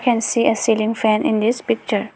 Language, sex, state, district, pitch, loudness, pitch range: English, female, Arunachal Pradesh, Lower Dibang Valley, 225 Hz, -18 LUFS, 215-235 Hz